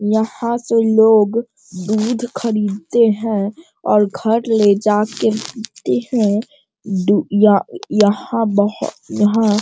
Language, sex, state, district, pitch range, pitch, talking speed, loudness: Hindi, male, Bihar, Sitamarhi, 205-230 Hz, 215 Hz, 110 wpm, -16 LUFS